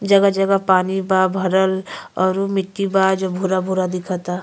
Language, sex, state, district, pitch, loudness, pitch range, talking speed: Bhojpuri, female, Uttar Pradesh, Ghazipur, 190 Hz, -18 LUFS, 185-195 Hz, 165 wpm